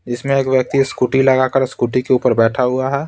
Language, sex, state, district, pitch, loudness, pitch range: Hindi, male, Bihar, Patna, 130 Hz, -16 LUFS, 125-135 Hz